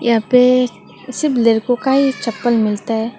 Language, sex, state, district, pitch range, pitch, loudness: Hindi, female, Tripura, West Tripura, 225-255 Hz, 240 Hz, -15 LUFS